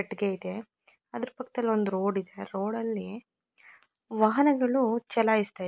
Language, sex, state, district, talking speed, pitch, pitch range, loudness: Kannada, female, Karnataka, Mysore, 125 wpm, 220 Hz, 200-235 Hz, -28 LUFS